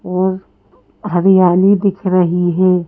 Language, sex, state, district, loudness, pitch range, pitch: Hindi, female, Madhya Pradesh, Bhopal, -13 LUFS, 180-190 Hz, 185 Hz